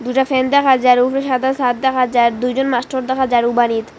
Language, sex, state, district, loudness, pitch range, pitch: Bengali, female, Assam, Hailakandi, -15 LUFS, 245-265 Hz, 255 Hz